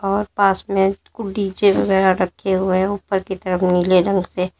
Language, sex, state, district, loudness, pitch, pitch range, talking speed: Hindi, female, Uttar Pradesh, Lalitpur, -18 LUFS, 190 Hz, 185-195 Hz, 210 wpm